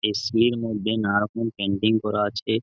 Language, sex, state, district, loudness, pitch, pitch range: Bengali, male, West Bengal, Malda, -23 LUFS, 110 Hz, 105-110 Hz